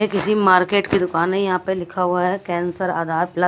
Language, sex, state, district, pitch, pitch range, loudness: Hindi, female, Delhi, New Delhi, 185 Hz, 175-195 Hz, -19 LUFS